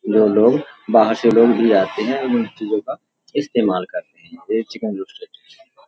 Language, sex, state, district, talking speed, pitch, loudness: Hindi, male, Uttar Pradesh, Hamirpur, 195 wpm, 120 Hz, -17 LUFS